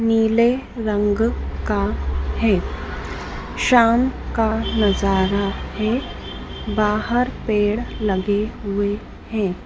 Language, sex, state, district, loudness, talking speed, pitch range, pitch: Hindi, female, Madhya Pradesh, Dhar, -21 LUFS, 80 wpm, 195-225 Hz, 210 Hz